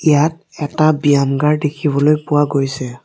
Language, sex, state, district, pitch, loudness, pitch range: Assamese, male, Assam, Sonitpur, 150 Hz, -15 LUFS, 140-155 Hz